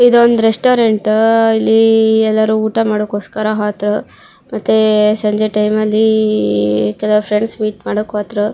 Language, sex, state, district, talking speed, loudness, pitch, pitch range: Kannada, female, Karnataka, Shimoga, 110 wpm, -13 LUFS, 215 Hz, 210-220 Hz